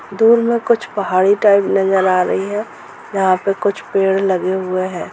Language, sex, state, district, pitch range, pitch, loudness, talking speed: Hindi, female, Jharkhand, Jamtara, 185-205 Hz, 195 Hz, -16 LUFS, 185 wpm